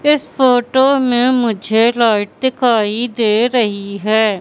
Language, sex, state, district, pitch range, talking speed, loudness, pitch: Hindi, female, Madhya Pradesh, Katni, 215-255 Hz, 120 wpm, -14 LUFS, 235 Hz